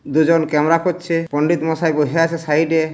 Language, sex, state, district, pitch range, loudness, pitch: Bengali, male, West Bengal, Purulia, 155-165 Hz, -17 LUFS, 160 Hz